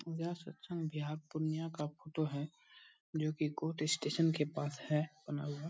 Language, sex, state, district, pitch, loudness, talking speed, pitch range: Hindi, male, Bihar, Purnia, 155 Hz, -39 LUFS, 160 wpm, 150-165 Hz